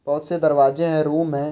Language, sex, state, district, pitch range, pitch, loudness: Hindi, male, Chhattisgarh, Korba, 145-165 Hz, 155 Hz, -19 LUFS